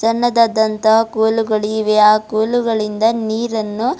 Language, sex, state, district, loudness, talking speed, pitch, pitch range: Kannada, female, Karnataka, Bidar, -15 LUFS, 75 wpm, 220 Hz, 215-230 Hz